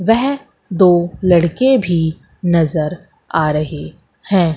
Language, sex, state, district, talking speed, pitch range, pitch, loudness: Hindi, female, Madhya Pradesh, Katni, 105 wpm, 160-195 Hz, 175 Hz, -15 LUFS